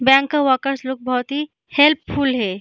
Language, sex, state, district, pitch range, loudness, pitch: Hindi, female, Bihar, Jahanabad, 255-290 Hz, -18 LUFS, 270 Hz